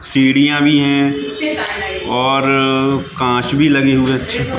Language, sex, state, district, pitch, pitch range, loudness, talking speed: Hindi, male, Madhya Pradesh, Katni, 135 Hz, 135-145 Hz, -14 LUFS, 115 wpm